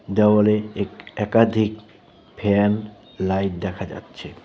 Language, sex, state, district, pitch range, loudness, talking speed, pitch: Bengali, male, West Bengal, Cooch Behar, 100-105 Hz, -21 LUFS, 95 wpm, 105 Hz